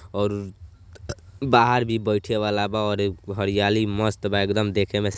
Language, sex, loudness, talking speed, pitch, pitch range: Bhojpuri, male, -23 LUFS, 175 wpm, 105 Hz, 100-110 Hz